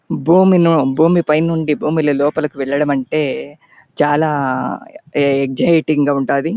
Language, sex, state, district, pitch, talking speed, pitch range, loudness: Telugu, male, Andhra Pradesh, Chittoor, 150 Hz, 110 wpm, 140-160 Hz, -15 LUFS